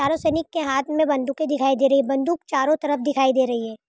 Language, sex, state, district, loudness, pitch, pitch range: Hindi, female, Rajasthan, Churu, -21 LUFS, 275 Hz, 270-310 Hz